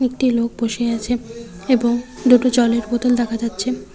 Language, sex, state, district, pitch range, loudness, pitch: Bengali, female, West Bengal, Cooch Behar, 230-250 Hz, -18 LUFS, 240 Hz